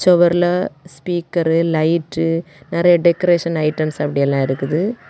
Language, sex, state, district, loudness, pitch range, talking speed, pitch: Tamil, female, Tamil Nadu, Kanyakumari, -17 LUFS, 155-175 Hz, 105 wpm, 165 Hz